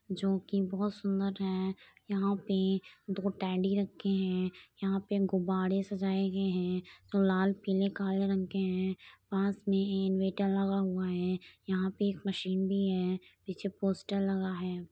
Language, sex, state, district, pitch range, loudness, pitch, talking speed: Hindi, female, Uttar Pradesh, Hamirpur, 190-195 Hz, -33 LUFS, 195 Hz, 155 wpm